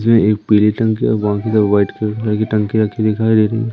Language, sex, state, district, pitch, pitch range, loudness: Hindi, male, Madhya Pradesh, Umaria, 110 Hz, 105-110 Hz, -15 LUFS